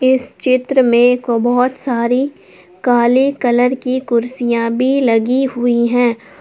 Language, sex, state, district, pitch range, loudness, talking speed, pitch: Hindi, female, Jharkhand, Palamu, 240-260 Hz, -15 LUFS, 120 wpm, 245 Hz